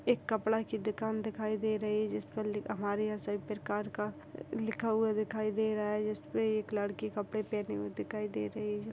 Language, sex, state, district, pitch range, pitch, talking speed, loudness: Hindi, female, Chhattisgarh, Balrampur, 210-220 Hz, 215 Hz, 220 wpm, -35 LUFS